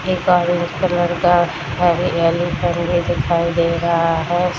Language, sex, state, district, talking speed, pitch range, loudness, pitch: Hindi, female, Bihar, Darbhanga, 120 wpm, 170-175 Hz, -17 LUFS, 175 Hz